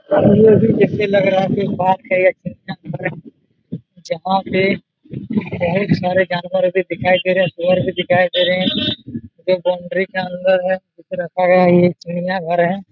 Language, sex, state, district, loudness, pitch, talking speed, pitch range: Hindi, male, Jharkhand, Jamtara, -16 LUFS, 185 Hz, 140 wpm, 175-190 Hz